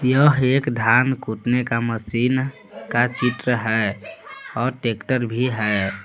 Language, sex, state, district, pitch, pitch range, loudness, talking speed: Hindi, male, Jharkhand, Palamu, 120 Hz, 110-130 Hz, -21 LUFS, 130 wpm